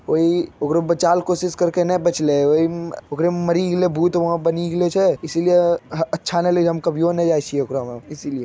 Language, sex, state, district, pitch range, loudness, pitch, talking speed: Magahi, male, Bihar, Jamui, 155-175 Hz, -19 LUFS, 170 Hz, 220 wpm